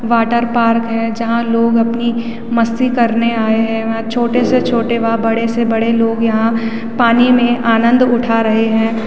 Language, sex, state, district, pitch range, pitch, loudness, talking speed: Hindi, female, Uttarakhand, Tehri Garhwal, 225-235 Hz, 230 Hz, -14 LUFS, 165 wpm